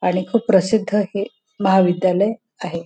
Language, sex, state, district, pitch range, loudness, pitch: Marathi, female, Maharashtra, Nagpur, 185-220 Hz, -18 LUFS, 200 Hz